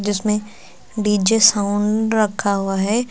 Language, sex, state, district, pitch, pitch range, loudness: Hindi, female, Uttar Pradesh, Lucknow, 210 Hz, 200-215 Hz, -18 LUFS